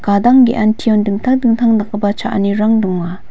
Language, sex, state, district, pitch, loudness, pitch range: Garo, female, Meghalaya, West Garo Hills, 215 Hz, -13 LUFS, 200-235 Hz